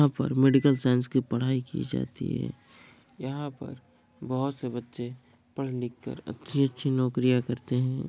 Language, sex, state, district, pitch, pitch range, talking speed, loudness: Hindi, male, Bihar, Kishanganj, 130 Hz, 125-135 Hz, 155 wpm, -28 LUFS